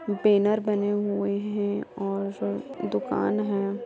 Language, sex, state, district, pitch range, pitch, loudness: Hindi, female, Bihar, Lakhisarai, 200-210 Hz, 205 Hz, -26 LUFS